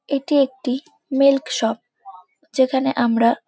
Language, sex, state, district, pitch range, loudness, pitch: Bengali, female, West Bengal, Kolkata, 240-280 Hz, -20 LUFS, 265 Hz